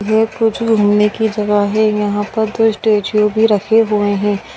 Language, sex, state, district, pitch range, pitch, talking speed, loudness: Hindi, female, Bihar, Bhagalpur, 205-220 Hz, 215 Hz, 185 wpm, -14 LUFS